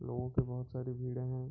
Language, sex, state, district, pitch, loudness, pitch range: Hindi, male, Bihar, Bhagalpur, 125 Hz, -38 LUFS, 125-130 Hz